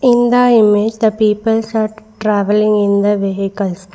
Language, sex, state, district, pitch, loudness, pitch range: English, female, Karnataka, Bangalore, 215 Hz, -14 LUFS, 205-220 Hz